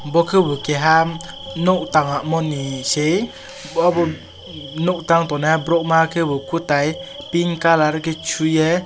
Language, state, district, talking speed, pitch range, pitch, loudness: Kokborok, Tripura, West Tripura, 120 wpm, 155-170 Hz, 165 Hz, -18 LUFS